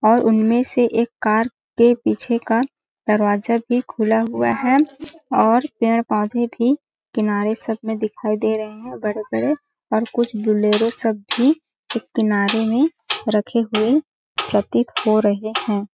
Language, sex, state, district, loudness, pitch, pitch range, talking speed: Hindi, female, Chhattisgarh, Balrampur, -19 LUFS, 225 Hz, 215-245 Hz, 140 wpm